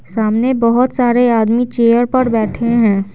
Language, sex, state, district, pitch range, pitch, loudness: Hindi, female, Bihar, Patna, 225-245 Hz, 235 Hz, -13 LUFS